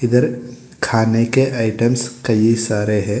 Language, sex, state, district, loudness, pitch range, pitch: Hindi, male, Telangana, Hyderabad, -17 LUFS, 110-120 Hz, 115 Hz